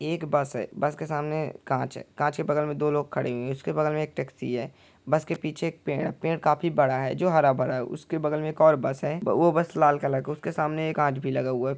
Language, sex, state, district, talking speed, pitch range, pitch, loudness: Hindi, female, Uttar Pradesh, Budaun, 290 wpm, 140-155 Hz, 150 Hz, -26 LUFS